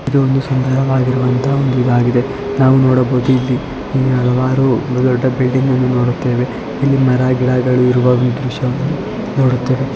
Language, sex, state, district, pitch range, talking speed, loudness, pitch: Kannada, male, Karnataka, Belgaum, 125-135 Hz, 125 wpm, -14 LUFS, 130 Hz